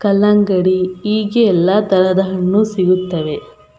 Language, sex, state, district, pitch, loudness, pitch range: Kannada, female, Karnataka, Belgaum, 190 Hz, -14 LUFS, 185-205 Hz